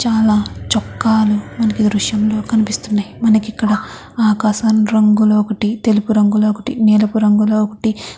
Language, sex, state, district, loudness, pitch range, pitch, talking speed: Telugu, female, Andhra Pradesh, Chittoor, -15 LUFS, 210-220 Hz, 215 Hz, 115 wpm